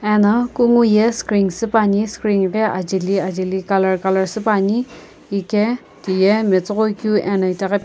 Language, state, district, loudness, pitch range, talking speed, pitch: Sumi, Nagaland, Kohima, -17 LUFS, 190-220 Hz, 130 wpm, 205 Hz